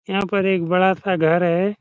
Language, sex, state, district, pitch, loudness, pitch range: Hindi, male, Bihar, Saran, 190 Hz, -19 LUFS, 175-195 Hz